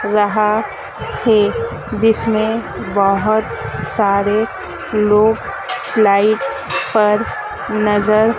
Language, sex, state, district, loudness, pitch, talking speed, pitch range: Hindi, female, Madhya Pradesh, Dhar, -16 LUFS, 215 Hz, 65 wpm, 210-220 Hz